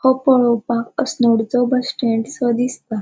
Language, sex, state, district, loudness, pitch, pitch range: Konkani, female, Goa, North and South Goa, -18 LUFS, 245 Hz, 235-260 Hz